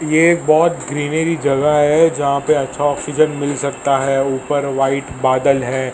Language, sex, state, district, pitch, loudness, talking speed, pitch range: Hindi, male, Maharashtra, Mumbai Suburban, 145 Hz, -16 LUFS, 170 wpm, 135-155 Hz